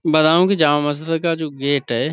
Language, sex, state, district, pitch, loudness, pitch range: Urdu, male, Uttar Pradesh, Budaun, 155 Hz, -18 LUFS, 145-165 Hz